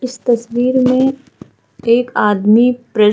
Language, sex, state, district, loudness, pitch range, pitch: Hindi, female, Uttar Pradesh, Hamirpur, -14 LUFS, 230-255 Hz, 240 Hz